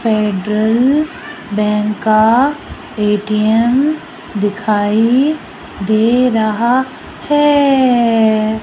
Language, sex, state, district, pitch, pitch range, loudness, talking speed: Hindi, female, Rajasthan, Jaipur, 225 Hz, 215-265 Hz, -13 LUFS, 55 wpm